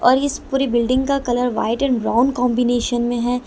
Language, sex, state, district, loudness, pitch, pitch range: Hindi, female, Delhi, New Delhi, -19 LUFS, 245 Hz, 240-265 Hz